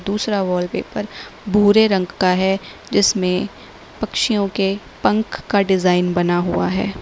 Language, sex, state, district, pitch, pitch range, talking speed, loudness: Hindi, female, Uttar Pradesh, Lalitpur, 195 Hz, 180-205 Hz, 130 wpm, -18 LUFS